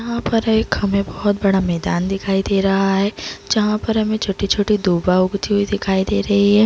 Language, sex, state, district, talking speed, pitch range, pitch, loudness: Hindi, female, Jharkhand, Jamtara, 190 wpm, 195-210 Hz, 200 Hz, -18 LUFS